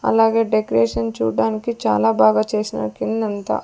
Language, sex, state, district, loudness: Telugu, female, Andhra Pradesh, Sri Satya Sai, -19 LUFS